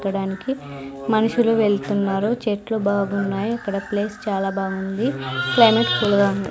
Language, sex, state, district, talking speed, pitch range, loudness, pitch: Telugu, female, Andhra Pradesh, Sri Satya Sai, 120 wpm, 195-220 Hz, -21 LUFS, 200 Hz